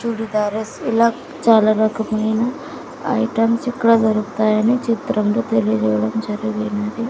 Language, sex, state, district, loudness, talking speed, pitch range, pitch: Telugu, female, Andhra Pradesh, Sri Satya Sai, -18 LUFS, 95 wpm, 215-230 Hz, 220 Hz